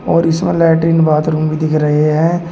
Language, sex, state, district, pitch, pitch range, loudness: Hindi, male, Uttar Pradesh, Shamli, 160 Hz, 155-165 Hz, -13 LUFS